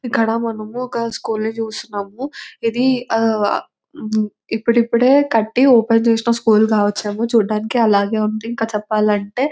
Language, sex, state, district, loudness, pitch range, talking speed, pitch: Telugu, female, Telangana, Nalgonda, -17 LUFS, 215-235 Hz, 120 wpm, 225 Hz